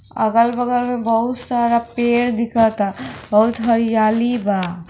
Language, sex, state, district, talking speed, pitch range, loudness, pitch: Hindi, female, Bihar, East Champaran, 135 wpm, 220-240 Hz, -18 LUFS, 230 Hz